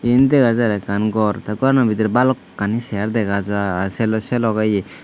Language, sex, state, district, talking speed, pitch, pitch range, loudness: Chakma, male, Tripura, Dhalai, 200 wpm, 110 Hz, 100-120 Hz, -18 LUFS